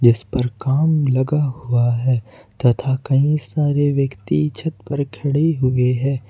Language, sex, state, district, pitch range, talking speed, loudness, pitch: Hindi, male, Jharkhand, Ranchi, 125-145 Hz, 145 wpm, -19 LUFS, 135 Hz